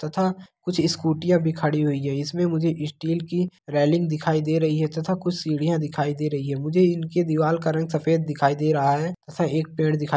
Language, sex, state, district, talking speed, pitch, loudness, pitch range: Hindi, male, Bihar, Begusarai, 225 wpm, 160 Hz, -23 LUFS, 150-170 Hz